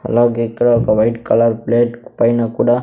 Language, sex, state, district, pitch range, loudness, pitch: Telugu, male, Andhra Pradesh, Sri Satya Sai, 115-120 Hz, -15 LUFS, 115 Hz